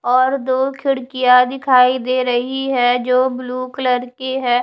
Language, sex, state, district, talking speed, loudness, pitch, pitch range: Hindi, female, Punjab, Fazilka, 155 wpm, -16 LUFS, 255 Hz, 250-260 Hz